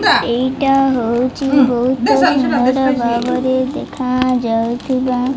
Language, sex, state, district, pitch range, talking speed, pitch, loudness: Odia, female, Odisha, Malkangiri, 245-265 Hz, 80 wpm, 255 Hz, -15 LUFS